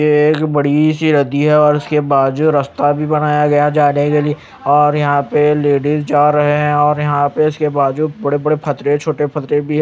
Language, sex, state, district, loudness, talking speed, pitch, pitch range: Hindi, male, Chandigarh, Chandigarh, -14 LUFS, 210 wpm, 150 Hz, 145-150 Hz